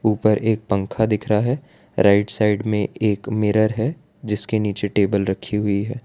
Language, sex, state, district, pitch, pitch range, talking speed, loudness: Hindi, male, Gujarat, Valsad, 105 Hz, 105-110 Hz, 180 wpm, -20 LUFS